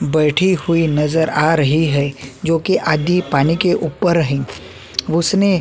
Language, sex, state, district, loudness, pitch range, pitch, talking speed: Hindi, male, Uttarakhand, Tehri Garhwal, -16 LUFS, 140-170 Hz, 155 Hz, 160 wpm